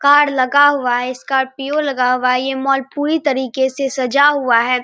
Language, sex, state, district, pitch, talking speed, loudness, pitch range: Hindi, male, Bihar, Saharsa, 270 Hz, 200 wpm, -16 LUFS, 255-285 Hz